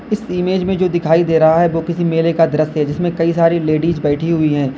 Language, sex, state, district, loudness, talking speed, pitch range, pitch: Hindi, male, Uttar Pradesh, Lalitpur, -15 LUFS, 265 wpm, 155-175 Hz, 165 Hz